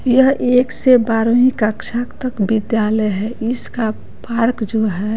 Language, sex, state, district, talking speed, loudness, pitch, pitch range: Hindi, female, Bihar, West Champaran, 140 wpm, -16 LUFS, 230 Hz, 220-250 Hz